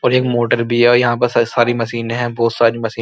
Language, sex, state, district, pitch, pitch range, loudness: Hindi, male, Uttar Pradesh, Muzaffarnagar, 120 Hz, 115-120 Hz, -15 LUFS